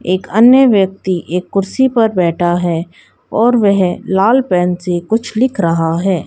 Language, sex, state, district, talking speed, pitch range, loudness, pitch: Hindi, female, Haryana, Jhajjar, 165 wpm, 175-225 Hz, -13 LUFS, 190 Hz